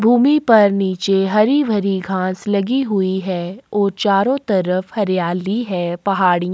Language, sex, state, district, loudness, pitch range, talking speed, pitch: Hindi, female, Chhattisgarh, Sukma, -17 LUFS, 185-215 Hz, 155 wpm, 195 Hz